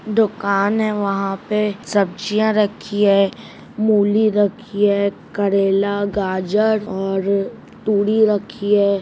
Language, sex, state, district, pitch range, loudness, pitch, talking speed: Hindi, male, Bihar, Madhepura, 200-215 Hz, -18 LUFS, 205 Hz, 105 wpm